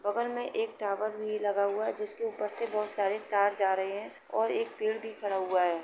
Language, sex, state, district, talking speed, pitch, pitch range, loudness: Hindi, female, Uttar Pradesh, Jalaun, 255 wpm, 210 Hz, 200-225 Hz, -31 LUFS